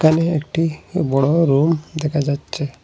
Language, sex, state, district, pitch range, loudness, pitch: Bengali, male, Assam, Hailakandi, 145-165 Hz, -19 LUFS, 155 Hz